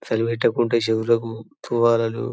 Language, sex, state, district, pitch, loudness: Telugu, male, Telangana, Karimnagar, 115 Hz, -21 LUFS